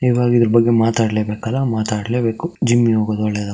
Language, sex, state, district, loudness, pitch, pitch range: Kannada, male, Karnataka, Shimoga, -17 LUFS, 115 Hz, 110-120 Hz